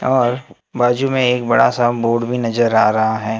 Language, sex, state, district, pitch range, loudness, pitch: Hindi, male, Maharashtra, Gondia, 110-125 Hz, -16 LUFS, 120 Hz